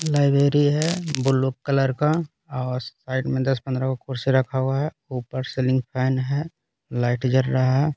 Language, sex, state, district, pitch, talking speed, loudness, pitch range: Hindi, male, Bihar, Patna, 130 Hz, 175 wpm, -23 LUFS, 130-145 Hz